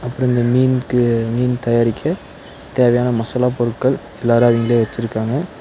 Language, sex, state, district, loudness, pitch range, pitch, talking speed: Tamil, male, Tamil Nadu, Nilgiris, -17 LUFS, 115-125 Hz, 120 Hz, 115 wpm